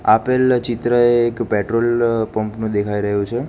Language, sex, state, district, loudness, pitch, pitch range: Gujarati, male, Gujarat, Gandhinagar, -18 LUFS, 115 Hz, 110-120 Hz